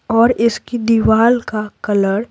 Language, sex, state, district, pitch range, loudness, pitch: Hindi, female, Bihar, Patna, 215-235 Hz, -15 LUFS, 225 Hz